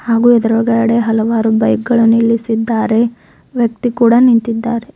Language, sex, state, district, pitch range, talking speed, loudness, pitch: Kannada, female, Karnataka, Bidar, 225-235 Hz, 110 wpm, -13 LUFS, 230 Hz